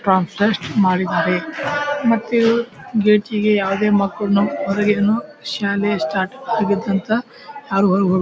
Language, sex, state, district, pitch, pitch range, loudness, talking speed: Kannada, male, Karnataka, Bijapur, 210 Hz, 195-230 Hz, -18 LUFS, 95 wpm